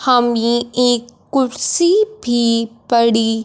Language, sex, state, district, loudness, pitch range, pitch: Hindi, female, Punjab, Fazilka, -16 LUFS, 230-250 Hz, 240 Hz